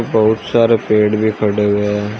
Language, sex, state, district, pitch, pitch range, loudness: Hindi, male, Uttar Pradesh, Shamli, 110 Hz, 105-110 Hz, -14 LUFS